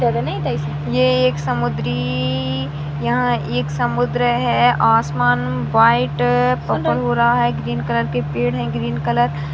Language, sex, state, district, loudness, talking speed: Hindi, female, Uttarakhand, Tehri Garhwal, -18 LUFS, 130 wpm